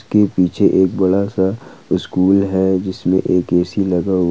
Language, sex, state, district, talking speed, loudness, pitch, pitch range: Hindi, male, Jharkhand, Ranchi, 180 wpm, -16 LUFS, 95 Hz, 90-95 Hz